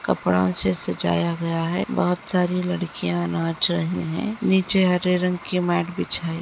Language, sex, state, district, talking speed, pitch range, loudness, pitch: Hindi, female, Uttar Pradesh, Etah, 160 wpm, 160-180 Hz, -22 LUFS, 175 Hz